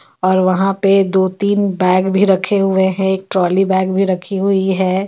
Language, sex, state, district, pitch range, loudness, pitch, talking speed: Hindi, female, Jharkhand, Ranchi, 185-195 Hz, -15 LUFS, 190 Hz, 200 wpm